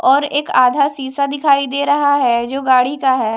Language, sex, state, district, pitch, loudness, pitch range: Hindi, female, Odisha, Malkangiri, 275 Hz, -15 LUFS, 260-285 Hz